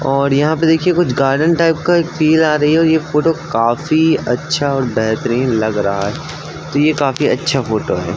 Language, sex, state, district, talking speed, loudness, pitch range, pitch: Hindi, male, Uttar Pradesh, Varanasi, 215 wpm, -15 LUFS, 120-160 Hz, 145 Hz